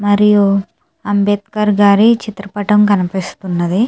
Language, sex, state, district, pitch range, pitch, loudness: Telugu, female, Andhra Pradesh, Chittoor, 200-210 Hz, 205 Hz, -13 LUFS